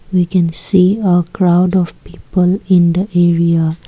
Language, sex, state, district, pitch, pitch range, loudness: English, female, Assam, Kamrup Metropolitan, 180 Hz, 170-185 Hz, -13 LUFS